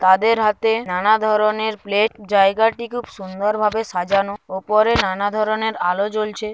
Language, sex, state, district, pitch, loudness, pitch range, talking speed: Bengali, female, West Bengal, Paschim Medinipur, 215 Hz, -19 LUFS, 195-220 Hz, 140 wpm